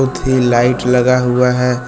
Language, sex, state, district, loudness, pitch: Hindi, male, Jharkhand, Deoghar, -13 LUFS, 125 Hz